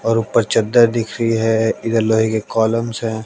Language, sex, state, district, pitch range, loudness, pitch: Hindi, male, Haryana, Jhajjar, 110-115 Hz, -17 LUFS, 115 Hz